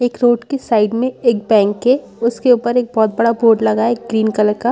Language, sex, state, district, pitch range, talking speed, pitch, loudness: Hindi, female, Chhattisgarh, Rajnandgaon, 220-245 Hz, 230 wpm, 230 Hz, -15 LUFS